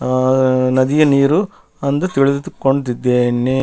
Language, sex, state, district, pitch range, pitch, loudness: Kannada, male, Karnataka, Bellary, 130-140 Hz, 130 Hz, -15 LUFS